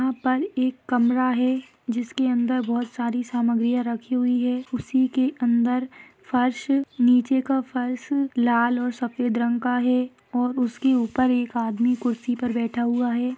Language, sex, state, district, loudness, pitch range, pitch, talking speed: Hindi, female, Maharashtra, Solapur, -23 LUFS, 240-255 Hz, 245 Hz, 155 wpm